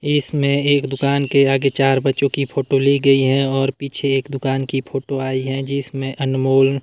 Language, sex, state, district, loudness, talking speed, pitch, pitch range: Hindi, male, Himachal Pradesh, Shimla, -18 LUFS, 195 wpm, 135 Hz, 135-140 Hz